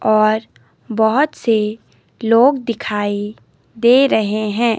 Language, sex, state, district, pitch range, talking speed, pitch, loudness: Hindi, female, Himachal Pradesh, Shimla, 215-235 Hz, 100 wpm, 220 Hz, -16 LUFS